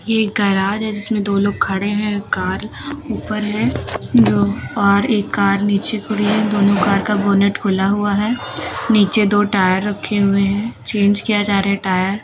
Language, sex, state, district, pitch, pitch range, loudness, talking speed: Hindi, female, Uttar Pradesh, Lucknow, 205 Hz, 195-210 Hz, -17 LUFS, 185 wpm